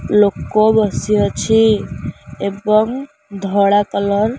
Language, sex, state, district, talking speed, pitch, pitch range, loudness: Odia, female, Odisha, Khordha, 95 wpm, 210 Hz, 200-220 Hz, -15 LUFS